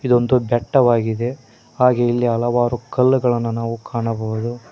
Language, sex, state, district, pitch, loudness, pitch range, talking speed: Kannada, male, Karnataka, Koppal, 120 Hz, -18 LUFS, 115-125 Hz, 100 wpm